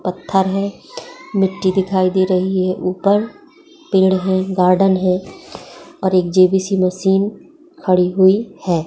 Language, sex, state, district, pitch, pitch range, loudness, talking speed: Hindi, female, Bihar, Begusarai, 190 Hz, 185-200 Hz, -16 LUFS, 130 wpm